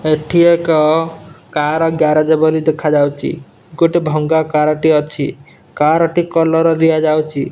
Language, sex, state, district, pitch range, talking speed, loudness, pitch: Odia, male, Odisha, Nuapada, 155-165 Hz, 120 wpm, -14 LUFS, 160 Hz